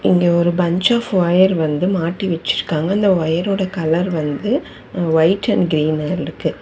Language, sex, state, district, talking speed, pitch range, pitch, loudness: Tamil, female, Tamil Nadu, Chennai, 145 wpm, 165-190 Hz, 175 Hz, -17 LUFS